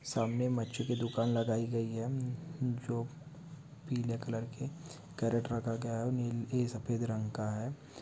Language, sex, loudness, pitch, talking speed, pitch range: Hindi, male, -36 LUFS, 120 Hz, 150 wpm, 115-130 Hz